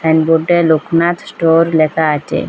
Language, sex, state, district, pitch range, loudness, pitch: Bengali, female, Assam, Hailakandi, 160-170 Hz, -13 LUFS, 165 Hz